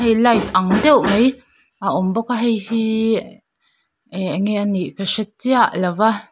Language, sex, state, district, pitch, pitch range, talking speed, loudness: Mizo, female, Mizoram, Aizawl, 220 Hz, 195-235 Hz, 160 wpm, -18 LUFS